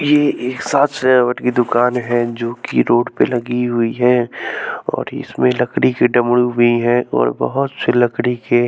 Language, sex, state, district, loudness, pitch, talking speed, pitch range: Hindi, male, Bihar, West Champaran, -16 LUFS, 120 Hz, 180 wpm, 120-125 Hz